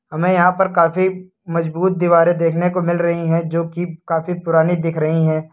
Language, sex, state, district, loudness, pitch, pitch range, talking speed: Hindi, male, Uttar Pradesh, Lucknow, -17 LUFS, 170 Hz, 165-180 Hz, 195 wpm